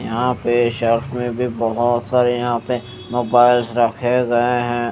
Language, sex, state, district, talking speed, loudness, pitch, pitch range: Hindi, male, Chandigarh, Chandigarh, 160 wpm, -18 LUFS, 120 Hz, 120-125 Hz